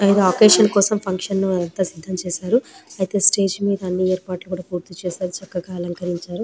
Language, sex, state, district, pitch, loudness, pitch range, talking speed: Telugu, female, Telangana, Nalgonda, 185 Hz, -20 LUFS, 180-200 Hz, 120 wpm